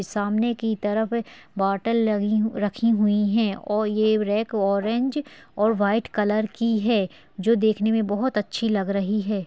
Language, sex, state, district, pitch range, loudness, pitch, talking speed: Hindi, female, Bihar, Darbhanga, 205-225 Hz, -23 LUFS, 215 Hz, 160 wpm